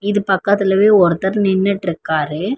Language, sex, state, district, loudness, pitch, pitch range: Tamil, female, Tamil Nadu, Chennai, -15 LUFS, 195 Hz, 175-200 Hz